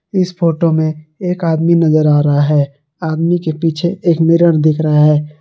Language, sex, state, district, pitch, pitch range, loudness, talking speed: Hindi, male, Jharkhand, Garhwa, 160 Hz, 150-170 Hz, -13 LUFS, 190 wpm